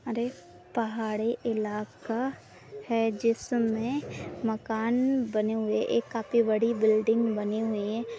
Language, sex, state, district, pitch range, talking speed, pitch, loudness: Hindi, female, Maharashtra, Sindhudurg, 220-235 Hz, 110 wpm, 225 Hz, -29 LUFS